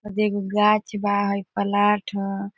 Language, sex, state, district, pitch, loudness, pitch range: Bhojpuri, female, Bihar, Gopalganj, 205 Hz, -22 LUFS, 200-210 Hz